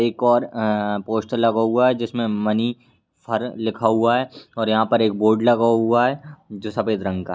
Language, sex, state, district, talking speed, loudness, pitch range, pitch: Hindi, male, Bihar, Lakhisarai, 210 wpm, -20 LUFS, 110-120 Hz, 115 Hz